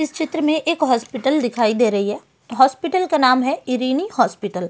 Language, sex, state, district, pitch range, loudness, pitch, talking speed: Hindi, female, Delhi, New Delhi, 235-310 Hz, -19 LUFS, 260 Hz, 205 wpm